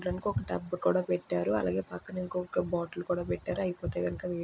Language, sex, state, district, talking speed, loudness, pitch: Telugu, female, Andhra Pradesh, Guntur, 200 wpm, -32 LUFS, 150 Hz